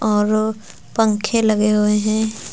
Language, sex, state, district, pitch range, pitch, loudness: Hindi, female, Uttar Pradesh, Lucknow, 210-220 Hz, 215 Hz, -18 LUFS